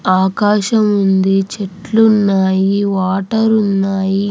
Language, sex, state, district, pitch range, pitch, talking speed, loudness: Telugu, female, Andhra Pradesh, Anantapur, 190-210 Hz, 195 Hz, 70 wpm, -14 LUFS